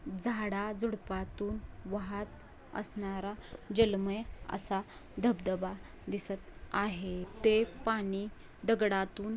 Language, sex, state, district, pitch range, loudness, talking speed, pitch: Marathi, female, Maharashtra, Dhule, 195-220 Hz, -35 LUFS, 70 wpm, 205 Hz